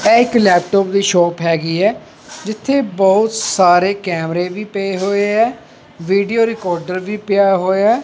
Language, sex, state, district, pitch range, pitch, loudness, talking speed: Punjabi, male, Punjab, Pathankot, 180-215 Hz, 195 Hz, -15 LUFS, 155 wpm